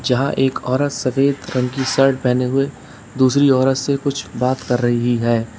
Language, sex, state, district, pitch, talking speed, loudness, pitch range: Hindi, male, Uttar Pradesh, Lalitpur, 130 Hz, 180 wpm, -18 LUFS, 125-135 Hz